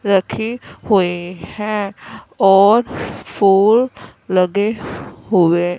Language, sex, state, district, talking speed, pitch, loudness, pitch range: Hindi, female, Punjab, Fazilka, 75 wpm, 200 Hz, -16 LUFS, 185-215 Hz